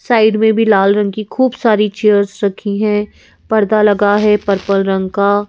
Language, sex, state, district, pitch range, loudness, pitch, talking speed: Hindi, female, Madhya Pradesh, Bhopal, 200-215 Hz, -13 LUFS, 210 Hz, 195 wpm